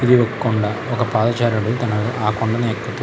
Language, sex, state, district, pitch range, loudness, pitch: Telugu, male, Andhra Pradesh, Krishna, 110-120 Hz, -19 LUFS, 115 Hz